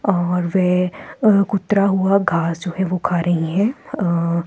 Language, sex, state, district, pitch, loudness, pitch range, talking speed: Hindi, female, Himachal Pradesh, Shimla, 180 Hz, -18 LUFS, 175-200 Hz, 185 wpm